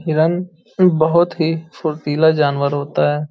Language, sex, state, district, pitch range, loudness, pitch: Hindi, male, Uttar Pradesh, Hamirpur, 150-170 Hz, -17 LUFS, 160 Hz